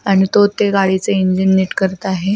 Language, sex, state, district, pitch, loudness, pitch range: Marathi, female, Maharashtra, Pune, 190 Hz, -15 LUFS, 190-200 Hz